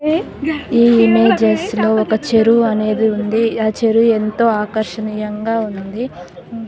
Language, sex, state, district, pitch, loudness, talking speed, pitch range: Telugu, female, Telangana, Nalgonda, 220 Hz, -15 LUFS, 115 wpm, 215-230 Hz